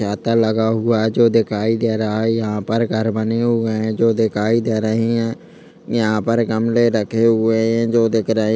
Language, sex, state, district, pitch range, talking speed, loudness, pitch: Hindi, male, Chhattisgarh, Kabirdham, 110-115 Hz, 210 wpm, -17 LUFS, 115 Hz